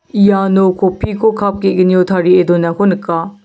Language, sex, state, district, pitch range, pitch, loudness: Garo, male, Meghalaya, South Garo Hills, 180-200 Hz, 190 Hz, -12 LUFS